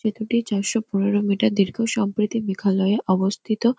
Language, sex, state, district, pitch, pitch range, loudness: Bengali, female, West Bengal, Kolkata, 210 Hz, 195-225 Hz, -22 LUFS